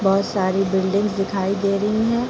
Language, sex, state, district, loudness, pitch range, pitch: Hindi, female, Bihar, Araria, -20 LUFS, 195-205 Hz, 195 Hz